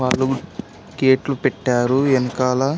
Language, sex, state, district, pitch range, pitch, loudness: Telugu, male, Telangana, Karimnagar, 125-135 Hz, 130 Hz, -19 LUFS